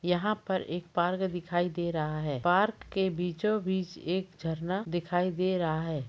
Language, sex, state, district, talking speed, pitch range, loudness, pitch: Hindi, male, Jharkhand, Jamtara, 165 wpm, 170-190 Hz, -31 LUFS, 175 Hz